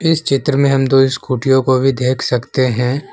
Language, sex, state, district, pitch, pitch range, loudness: Hindi, male, Assam, Kamrup Metropolitan, 135 Hz, 130-140 Hz, -15 LUFS